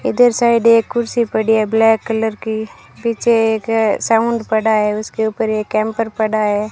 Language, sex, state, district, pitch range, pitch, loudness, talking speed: Hindi, female, Rajasthan, Bikaner, 220-230 Hz, 220 Hz, -16 LUFS, 180 wpm